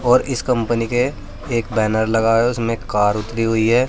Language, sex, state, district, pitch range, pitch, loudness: Hindi, male, Uttar Pradesh, Saharanpur, 110-120 Hz, 115 Hz, -18 LUFS